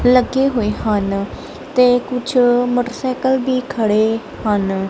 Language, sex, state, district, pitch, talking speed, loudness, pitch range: Punjabi, male, Punjab, Kapurthala, 245 Hz, 110 wpm, -17 LUFS, 215-255 Hz